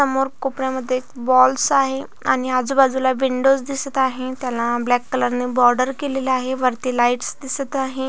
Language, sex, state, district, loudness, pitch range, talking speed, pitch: Marathi, female, Maharashtra, Pune, -19 LUFS, 255-270 Hz, 155 wpm, 260 Hz